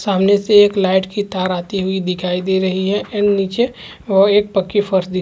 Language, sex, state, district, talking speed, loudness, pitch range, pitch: Hindi, male, Chhattisgarh, Korba, 220 wpm, -16 LUFS, 185-205 Hz, 195 Hz